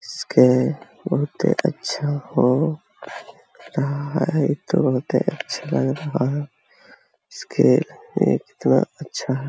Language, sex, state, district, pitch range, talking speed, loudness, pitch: Hindi, male, Uttar Pradesh, Hamirpur, 130-150 Hz, 120 wpm, -21 LUFS, 140 Hz